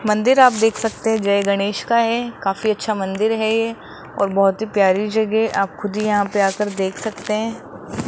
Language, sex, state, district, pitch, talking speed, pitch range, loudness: Hindi, male, Rajasthan, Jaipur, 215 Hz, 210 wpm, 200-225 Hz, -19 LUFS